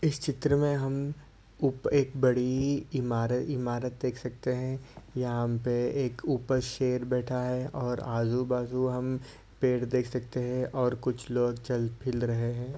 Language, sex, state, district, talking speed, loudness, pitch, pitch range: Hindi, male, Uttar Pradesh, Ghazipur, 165 wpm, -30 LUFS, 125 Hz, 125-130 Hz